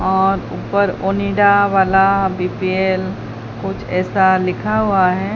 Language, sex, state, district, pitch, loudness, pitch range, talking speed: Hindi, female, Odisha, Sambalpur, 190 Hz, -16 LUFS, 185-195 Hz, 110 wpm